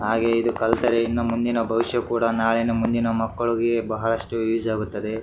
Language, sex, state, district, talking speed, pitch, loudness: Kannada, male, Karnataka, Raichur, 150 wpm, 115 Hz, -23 LUFS